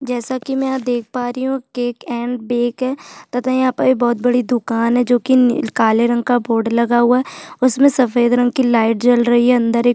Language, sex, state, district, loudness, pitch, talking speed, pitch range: Hindi, female, Chhattisgarh, Jashpur, -16 LUFS, 245 Hz, 240 wpm, 240-255 Hz